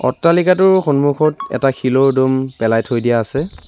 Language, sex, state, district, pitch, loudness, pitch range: Assamese, male, Assam, Sonitpur, 135 Hz, -15 LUFS, 125-155 Hz